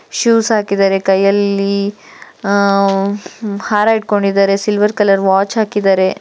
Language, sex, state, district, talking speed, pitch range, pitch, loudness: Kannada, female, Karnataka, Gulbarga, 105 wpm, 195-210 Hz, 200 Hz, -14 LUFS